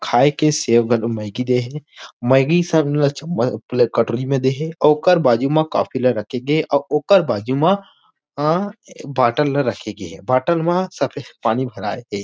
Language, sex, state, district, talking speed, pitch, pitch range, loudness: Chhattisgarhi, male, Chhattisgarh, Rajnandgaon, 195 wpm, 135 Hz, 120-155 Hz, -18 LUFS